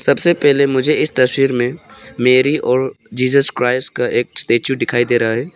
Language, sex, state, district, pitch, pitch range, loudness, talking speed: Hindi, male, Arunachal Pradesh, Papum Pare, 130 Hz, 125-140 Hz, -15 LUFS, 185 wpm